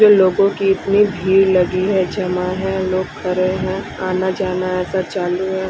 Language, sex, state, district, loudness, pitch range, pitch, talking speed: Hindi, female, Bihar, Patna, -17 LUFS, 185-195 Hz, 185 Hz, 170 wpm